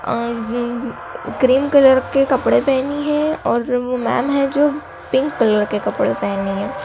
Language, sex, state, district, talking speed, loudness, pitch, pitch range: Hindi, female, Madhya Pradesh, Dhar, 155 wpm, -17 LUFS, 250 Hz, 235-275 Hz